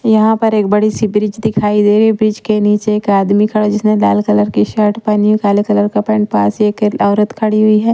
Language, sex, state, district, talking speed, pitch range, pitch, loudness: Hindi, female, Haryana, Rohtak, 240 wpm, 205-215 Hz, 210 Hz, -12 LUFS